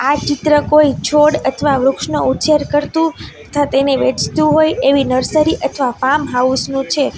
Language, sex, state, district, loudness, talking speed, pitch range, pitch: Gujarati, female, Gujarat, Valsad, -14 LUFS, 160 wpm, 270-300 Hz, 285 Hz